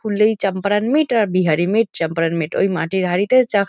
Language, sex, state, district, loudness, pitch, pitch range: Bengali, female, West Bengal, North 24 Parganas, -18 LUFS, 200 Hz, 180-215 Hz